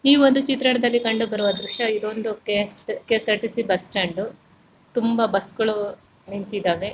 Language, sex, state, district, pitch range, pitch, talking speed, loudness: Kannada, male, Karnataka, Mysore, 200-230 Hz, 215 Hz, 140 wpm, -20 LUFS